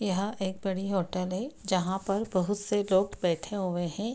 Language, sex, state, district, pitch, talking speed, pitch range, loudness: Hindi, female, Bihar, Darbhanga, 190 Hz, 185 wpm, 185-205 Hz, -30 LUFS